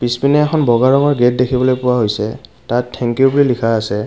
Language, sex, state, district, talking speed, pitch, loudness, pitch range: Assamese, male, Assam, Kamrup Metropolitan, 205 wpm, 125 Hz, -14 LUFS, 120-135 Hz